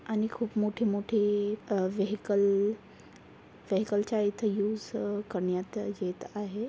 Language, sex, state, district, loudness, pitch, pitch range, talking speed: Marathi, female, Maharashtra, Aurangabad, -30 LUFS, 205 Hz, 200-215 Hz, 110 wpm